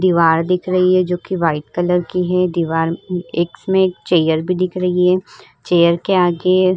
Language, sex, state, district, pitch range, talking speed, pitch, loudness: Hindi, female, Uttar Pradesh, Varanasi, 170-185 Hz, 185 wpm, 180 Hz, -16 LUFS